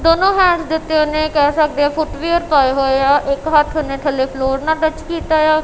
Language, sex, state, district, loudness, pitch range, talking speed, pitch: Punjabi, female, Punjab, Kapurthala, -15 LUFS, 285-320 Hz, 235 wpm, 310 Hz